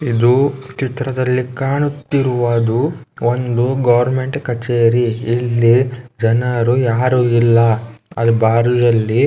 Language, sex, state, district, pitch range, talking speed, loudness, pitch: Kannada, male, Karnataka, Dharwad, 115-130 Hz, 85 wpm, -15 LUFS, 120 Hz